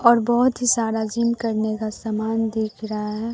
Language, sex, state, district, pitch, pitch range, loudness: Hindi, male, Bihar, Katihar, 225 Hz, 220-235 Hz, -22 LUFS